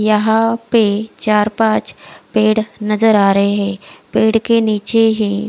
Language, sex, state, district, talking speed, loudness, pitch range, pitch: Hindi, female, Odisha, Khordha, 140 wpm, -14 LUFS, 210-225 Hz, 215 Hz